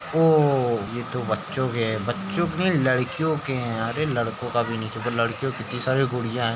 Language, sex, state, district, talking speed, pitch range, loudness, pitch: Hindi, male, Uttar Pradesh, Muzaffarnagar, 210 wpm, 115-135 Hz, -24 LUFS, 125 Hz